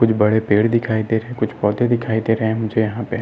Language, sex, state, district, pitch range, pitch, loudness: Hindi, male, Maharashtra, Nagpur, 110-115 Hz, 110 Hz, -18 LUFS